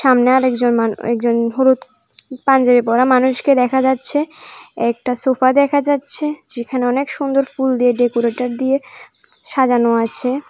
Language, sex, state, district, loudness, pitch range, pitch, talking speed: Bengali, female, Tripura, South Tripura, -16 LUFS, 245-270 Hz, 255 Hz, 130 wpm